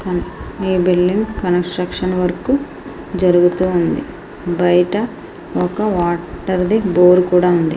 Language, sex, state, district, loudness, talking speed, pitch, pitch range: Telugu, female, Andhra Pradesh, Srikakulam, -16 LUFS, 100 wpm, 180 Hz, 180-190 Hz